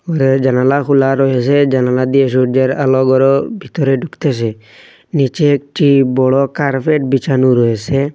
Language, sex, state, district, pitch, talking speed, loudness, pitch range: Bengali, male, Assam, Hailakandi, 135 Hz, 130 wpm, -13 LUFS, 130-140 Hz